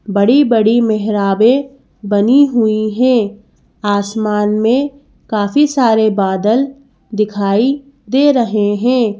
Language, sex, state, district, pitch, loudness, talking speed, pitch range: Hindi, female, Madhya Pradesh, Bhopal, 220 Hz, -13 LUFS, 100 wpm, 210-255 Hz